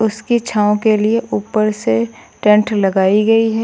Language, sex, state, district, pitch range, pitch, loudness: Hindi, female, Uttar Pradesh, Lucknow, 210-225 Hz, 215 Hz, -15 LUFS